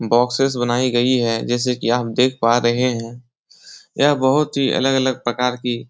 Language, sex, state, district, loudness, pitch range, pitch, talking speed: Hindi, male, Bihar, Supaul, -18 LUFS, 120-130 Hz, 125 Hz, 185 wpm